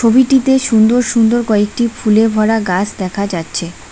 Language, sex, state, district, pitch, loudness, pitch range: Bengali, female, West Bengal, Cooch Behar, 220 Hz, -13 LUFS, 200-240 Hz